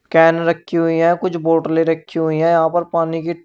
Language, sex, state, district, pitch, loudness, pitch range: Hindi, male, Uttar Pradesh, Shamli, 165 Hz, -16 LUFS, 165-170 Hz